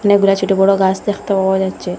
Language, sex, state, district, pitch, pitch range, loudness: Bengali, female, Assam, Hailakandi, 195 Hz, 190-200 Hz, -15 LUFS